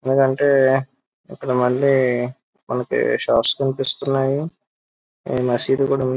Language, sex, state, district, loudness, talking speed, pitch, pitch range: Telugu, male, Andhra Pradesh, Krishna, -19 LUFS, 95 wpm, 135 Hz, 130-135 Hz